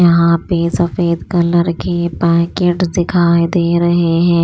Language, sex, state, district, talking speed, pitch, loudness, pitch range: Hindi, female, Maharashtra, Washim, 135 wpm, 170 Hz, -14 LUFS, 170-175 Hz